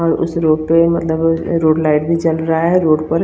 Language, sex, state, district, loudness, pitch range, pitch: Hindi, female, Chandigarh, Chandigarh, -14 LUFS, 160-170 Hz, 165 Hz